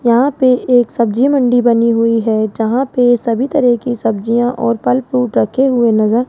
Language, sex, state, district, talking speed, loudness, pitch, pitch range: Hindi, female, Rajasthan, Jaipur, 190 wpm, -13 LUFS, 240 Hz, 230-250 Hz